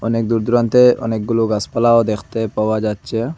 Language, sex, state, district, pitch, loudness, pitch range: Bengali, male, Assam, Hailakandi, 115 Hz, -16 LUFS, 110-115 Hz